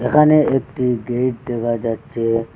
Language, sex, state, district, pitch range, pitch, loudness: Bengali, male, Assam, Hailakandi, 115-135 Hz, 120 Hz, -18 LUFS